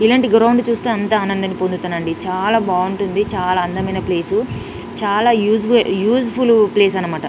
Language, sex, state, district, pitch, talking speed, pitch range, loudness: Telugu, female, Telangana, Nalgonda, 200 Hz, 150 wpm, 185-225 Hz, -16 LUFS